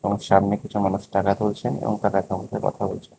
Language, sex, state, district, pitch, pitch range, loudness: Bengali, male, Tripura, West Tripura, 100 Hz, 95-105 Hz, -23 LUFS